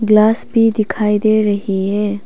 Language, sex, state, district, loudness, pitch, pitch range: Hindi, female, Arunachal Pradesh, Papum Pare, -15 LUFS, 210 Hz, 205-215 Hz